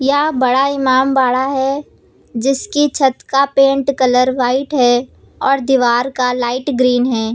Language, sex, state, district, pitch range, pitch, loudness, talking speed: Hindi, female, Uttar Pradesh, Lucknow, 250-275 Hz, 265 Hz, -15 LUFS, 140 wpm